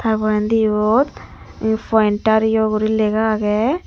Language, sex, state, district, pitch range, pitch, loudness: Chakma, female, Tripura, Unakoti, 215-220 Hz, 220 Hz, -17 LUFS